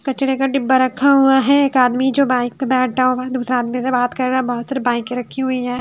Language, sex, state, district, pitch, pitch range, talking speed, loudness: Hindi, female, Haryana, Charkhi Dadri, 255 Hz, 250-270 Hz, 270 wpm, -17 LUFS